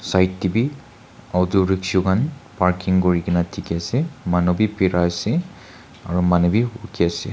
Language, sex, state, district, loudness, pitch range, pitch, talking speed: Nagamese, male, Nagaland, Kohima, -20 LUFS, 90-115 Hz, 95 Hz, 170 wpm